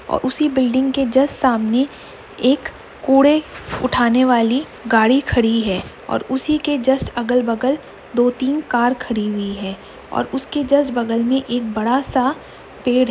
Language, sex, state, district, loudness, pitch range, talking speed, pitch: Hindi, female, Uttar Pradesh, Budaun, -18 LUFS, 240-270 Hz, 155 wpm, 255 Hz